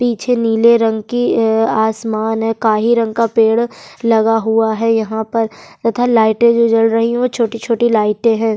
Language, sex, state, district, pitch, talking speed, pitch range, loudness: Hindi, female, Bihar, Kishanganj, 225 Hz, 180 wpm, 220-230 Hz, -14 LUFS